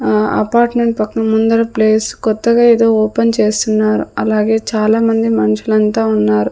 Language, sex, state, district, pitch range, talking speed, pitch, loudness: Telugu, female, Andhra Pradesh, Sri Satya Sai, 215-230 Hz, 130 wpm, 220 Hz, -13 LUFS